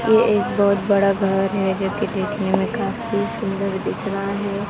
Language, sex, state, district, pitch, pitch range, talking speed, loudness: Hindi, female, Maharashtra, Mumbai Suburban, 200 Hz, 195-205 Hz, 180 wpm, -20 LUFS